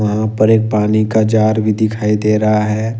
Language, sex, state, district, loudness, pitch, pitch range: Hindi, male, Jharkhand, Ranchi, -14 LUFS, 110 Hz, 105-110 Hz